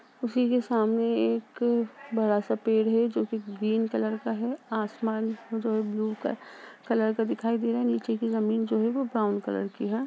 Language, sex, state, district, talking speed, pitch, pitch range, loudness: Hindi, female, Uttar Pradesh, Jalaun, 200 wpm, 225 Hz, 220-235 Hz, -28 LUFS